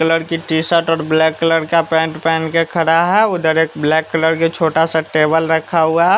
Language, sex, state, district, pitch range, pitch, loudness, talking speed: Hindi, male, Bihar, West Champaran, 160-165 Hz, 160 Hz, -15 LUFS, 215 wpm